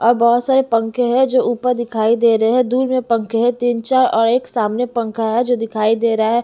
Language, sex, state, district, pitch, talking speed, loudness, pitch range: Hindi, female, Bihar, Patna, 235 Hz, 250 wpm, -16 LUFS, 225-250 Hz